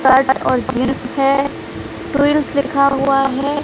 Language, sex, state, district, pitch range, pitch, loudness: Hindi, female, Odisha, Sambalpur, 265-285 Hz, 275 Hz, -16 LUFS